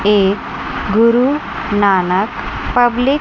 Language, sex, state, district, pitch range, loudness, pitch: Hindi, female, Chandigarh, Chandigarh, 200-245 Hz, -15 LUFS, 215 Hz